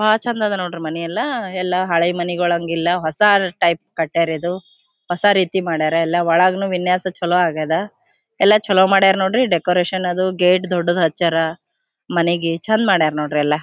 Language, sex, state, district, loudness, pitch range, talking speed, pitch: Kannada, female, Karnataka, Gulbarga, -17 LUFS, 170-195 Hz, 150 wpm, 180 Hz